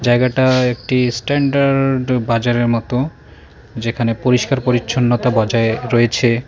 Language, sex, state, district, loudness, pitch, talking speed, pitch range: Bengali, male, West Bengal, Cooch Behar, -16 LUFS, 125 Hz, 90 wpm, 120-130 Hz